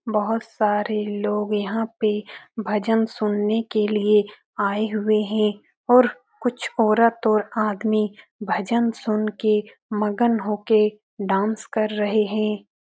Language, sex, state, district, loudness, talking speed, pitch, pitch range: Hindi, female, Uttar Pradesh, Etah, -22 LUFS, 125 wpm, 215 Hz, 210-220 Hz